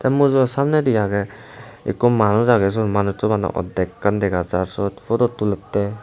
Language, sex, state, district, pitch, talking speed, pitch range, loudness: Chakma, male, Tripura, Unakoti, 105 Hz, 140 wpm, 100-120 Hz, -19 LUFS